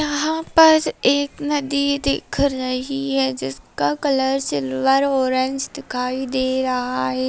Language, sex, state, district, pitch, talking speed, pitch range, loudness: Hindi, female, Bihar, Samastipur, 270 Hz, 125 wpm, 255-280 Hz, -20 LUFS